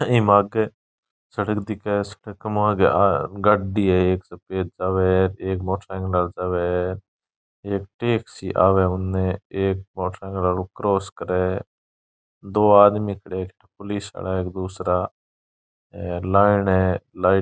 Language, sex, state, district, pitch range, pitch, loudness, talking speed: Rajasthani, male, Rajasthan, Churu, 90-100 Hz, 95 Hz, -22 LUFS, 115 wpm